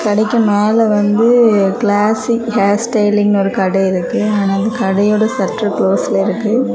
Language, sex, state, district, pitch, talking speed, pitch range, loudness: Tamil, female, Tamil Nadu, Kanyakumari, 210 Hz, 135 wpm, 200-225 Hz, -13 LUFS